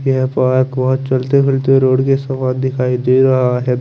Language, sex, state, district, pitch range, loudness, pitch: Hindi, male, Chandigarh, Chandigarh, 130-135 Hz, -14 LUFS, 130 Hz